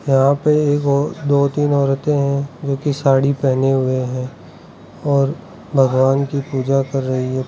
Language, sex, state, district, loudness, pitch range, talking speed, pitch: Hindi, male, Arunachal Pradesh, Lower Dibang Valley, -17 LUFS, 135-140 Hz, 170 wpm, 140 Hz